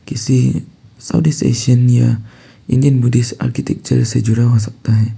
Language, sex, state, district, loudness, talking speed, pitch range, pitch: Hindi, male, Arunachal Pradesh, Papum Pare, -15 LUFS, 115 wpm, 115-130 Hz, 125 Hz